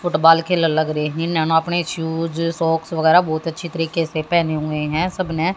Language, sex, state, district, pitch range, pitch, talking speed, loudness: Hindi, female, Haryana, Jhajjar, 160-170 Hz, 165 Hz, 205 wpm, -19 LUFS